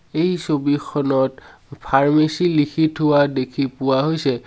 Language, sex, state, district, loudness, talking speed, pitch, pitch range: Assamese, male, Assam, Sonitpur, -19 LUFS, 105 wpm, 145 Hz, 135-155 Hz